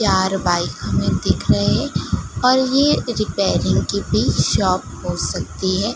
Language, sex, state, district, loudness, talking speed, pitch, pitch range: Hindi, female, Gujarat, Gandhinagar, -19 LUFS, 150 wpm, 195 Hz, 190-255 Hz